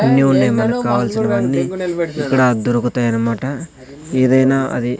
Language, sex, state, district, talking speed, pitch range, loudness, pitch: Telugu, male, Andhra Pradesh, Sri Satya Sai, 95 wpm, 120-135 Hz, -16 LUFS, 130 Hz